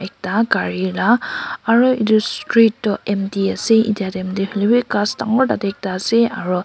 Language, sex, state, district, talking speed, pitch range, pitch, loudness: Nagamese, female, Nagaland, Kohima, 170 wpm, 195-230 Hz, 210 Hz, -17 LUFS